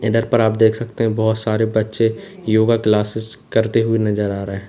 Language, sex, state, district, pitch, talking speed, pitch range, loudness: Hindi, male, Uttar Pradesh, Saharanpur, 110 Hz, 215 wpm, 110-115 Hz, -18 LUFS